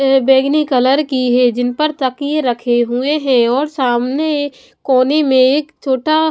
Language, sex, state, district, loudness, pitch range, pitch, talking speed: Hindi, female, Punjab, Pathankot, -14 LUFS, 250-295 Hz, 265 Hz, 140 wpm